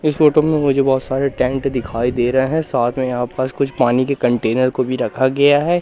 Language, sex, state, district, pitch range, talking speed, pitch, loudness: Hindi, male, Madhya Pradesh, Katni, 125-145 Hz, 245 wpm, 130 Hz, -17 LUFS